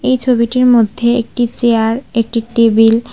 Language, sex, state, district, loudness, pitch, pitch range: Bengali, female, Tripura, West Tripura, -13 LUFS, 235 Hz, 230-245 Hz